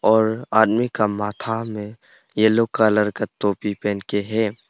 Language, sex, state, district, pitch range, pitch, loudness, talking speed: Hindi, male, Arunachal Pradesh, Papum Pare, 105-110 Hz, 105 Hz, -21 LUFS, 155 wpm